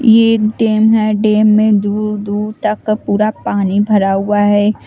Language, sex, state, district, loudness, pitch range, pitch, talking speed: Hindi, female, Chandigarh, Chandigarh, -13 LUFS, 205-215 Hz, 215 Hz, 170 wpm